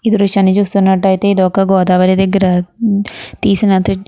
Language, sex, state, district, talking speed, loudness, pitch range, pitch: Telugu, female, Andhra Pradesh, Guntur, 105 wpm, -12 LUFS, 190-200 Hz, 195 Hz